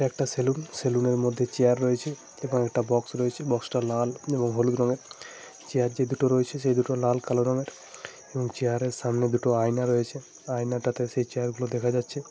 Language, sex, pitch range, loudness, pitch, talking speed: Bengali, male, 120-130 Hz, -27 LUFS, 125 Hz, 230 wpm